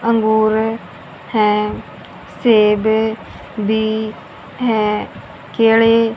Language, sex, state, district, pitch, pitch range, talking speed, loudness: Hindi, female, Haryana, Rohtak, 220 Hz, 215-225 Hz, 70 wpm, -16 LUFS